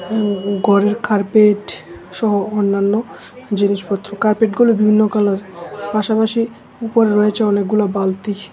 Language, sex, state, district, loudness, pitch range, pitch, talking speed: Bengali, male, Tripura, West Tripura, -16 LUFS, 200-220 Hz, 210 Hz, 100 wpm